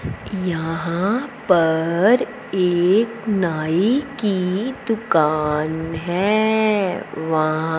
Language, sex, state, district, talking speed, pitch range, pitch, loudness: Hindi, female, Punjab, Fazilka, 60 wpm, 160-215 Hz, 180 Hz, -20 LUFS